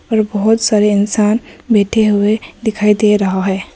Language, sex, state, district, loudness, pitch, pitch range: Hindi, female, Arunachal Pradesh, Papum Pare, -14 LUFS, 210 Hz, 205-220 Hz